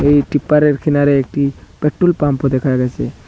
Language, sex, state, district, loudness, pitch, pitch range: Bengali, male, Assam, Hailakandi, -15 LUFS, 145 Hz, 140-150 Hz